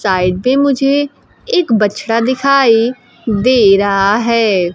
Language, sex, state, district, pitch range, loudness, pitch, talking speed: Hindi, female, Bihar, Kaimur, 200-260 Hz, -12 LUFS, 230 Hz, 115 wpm